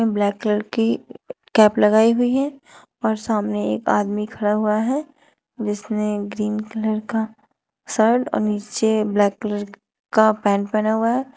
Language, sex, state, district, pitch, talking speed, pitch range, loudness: Hindi, female, Uttar Pradesh, Shamli, 215 Hz, 150 wpm, 210-230 Hz, -20 LUFS